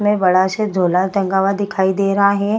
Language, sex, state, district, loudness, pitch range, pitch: Hindi, female, Bihar, Gaya, -16 LUFS, 190-200 Hz, 195 Hz